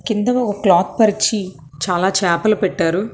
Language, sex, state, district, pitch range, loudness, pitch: Telugu, female, Telangana, Hyderabad, 175-215 Hz, -17 LUFS, 195 Hz